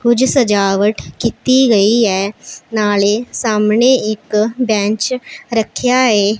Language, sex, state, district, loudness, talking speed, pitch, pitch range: Punjabi, female, Punjab, Pathankot, -14 LUFS, 105 wpm, 220 Hz, 210-245 Hz